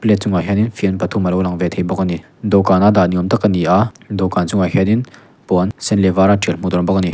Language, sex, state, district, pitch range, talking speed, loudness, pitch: Mizo, male, Mizoram, Aizawl, 90-105 Hz, 325 wpm, -16 LUFS, 95 Hz